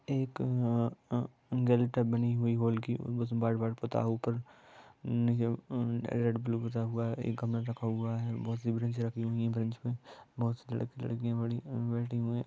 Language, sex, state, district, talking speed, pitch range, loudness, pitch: Hindi, male, Bihar, East Champaran, 130 wpm, 115-120 Hz, -34 LUFS, 115 Hz